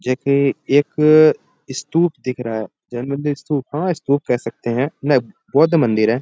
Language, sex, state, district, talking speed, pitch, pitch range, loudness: Hindi, male, Bihar, Bhagalpur, 185 wpm, 140 Hz, 125-150 Hz, -18 LUFS